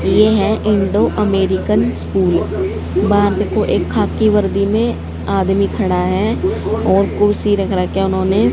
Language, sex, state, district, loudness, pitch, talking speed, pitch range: Hindi, female, Haryana, Jhajjar, -15 LUFS, 200 Hz, 140 wpm, 190-210 Hz